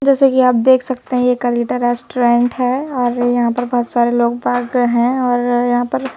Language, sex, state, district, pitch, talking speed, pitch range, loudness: Hindi, female, Madhya Pradesh, Bhopal, 245 Hz, 205 wpm, 240-255 Hz, -15 LUFS